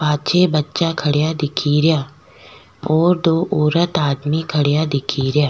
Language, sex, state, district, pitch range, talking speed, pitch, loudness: Rajasthani, female, Rajasthan, Nagaur, 145-165 Hz, 110 wpm, 150 Hz, -17 LUFS